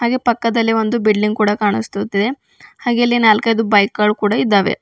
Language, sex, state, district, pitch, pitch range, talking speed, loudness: Kannada, female, Karnataka, Bidar, 220 Hz, 210-235 Hz, 160 wpm, -15 LUFS